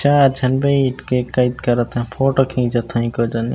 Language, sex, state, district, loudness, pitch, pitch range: Chhattisgarhi, male, Chhattisgarh, Raigarh, -18 LUFS, 125 Hz, 120-135 Hz